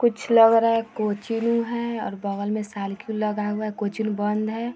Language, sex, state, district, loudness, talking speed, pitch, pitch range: Hindi, female, Bihar, Vaishali, -23 LUFS, 190 wpm, 215 Hz, 210-230 Hz